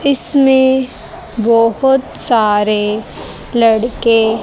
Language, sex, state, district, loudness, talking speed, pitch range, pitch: Hindi, female, Haryana, Jhajjar, -13 LUFS, 55 wpm, 220-265 Hz, 230 Hz